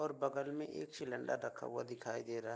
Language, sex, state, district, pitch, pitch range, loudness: Hindi, male, Bihar, Begusarai, 140 Hz, 115-150 Hz, -43 LUFS